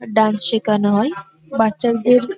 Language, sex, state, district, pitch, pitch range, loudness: Bengali, female, West Bengal, North 24 Parganas, 220 Hz, 210-235 Hz, -17 LUFS